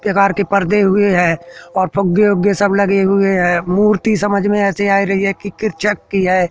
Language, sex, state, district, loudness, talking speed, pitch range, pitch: Hindi, male, Madhya Pradesh, Katni, -14 LUFS, 210 wpm, 190-205 Hz, 200 Hz